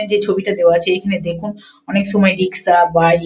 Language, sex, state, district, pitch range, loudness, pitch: Bengali, female, West Bengal, Kolkata, 175-200 Hz, -15 LUFS, 185 Hz